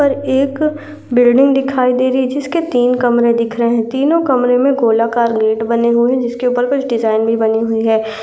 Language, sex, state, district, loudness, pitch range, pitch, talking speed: Hindi, female, Uttar Pradesh, Etah, -14 LUFS, 230-270 Hz, 245 Hz, 205 wpm